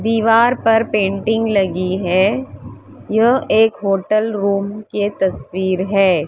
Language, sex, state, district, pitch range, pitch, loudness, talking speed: Hindi, female, Maharashtra, Mumbai Suburban, 190-220 Hz, 200 Hz, -16 LUFS, 115 wpm